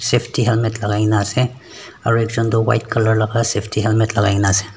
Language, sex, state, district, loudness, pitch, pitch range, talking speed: Nagamese, male, Nagaland, Dimapur, -17 LUFS, 115 Hz, 105-115 Hz, 200 wpm